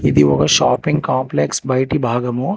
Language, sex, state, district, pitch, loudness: Telugu, male, Telangana, Hyderabad, 125 Hz, -16 LUFS